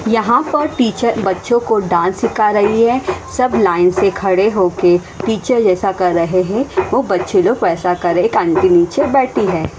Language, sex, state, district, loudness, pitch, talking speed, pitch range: Hindi, female, Haryana, Rohtak, -14 LUFS, 220 Hz, 190 wpm, 185-260 Hz